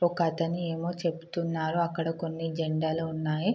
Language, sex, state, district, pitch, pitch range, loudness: Telugu, female, Andhra Pradesh, Srikakulam, 165 Hz, 160-170 Hz, -30 LUFS